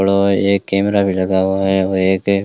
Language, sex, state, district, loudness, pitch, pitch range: Hindi, male, Rajasthan, Bikaner, -15 LUFS, 95 Hz, 95-100 Hz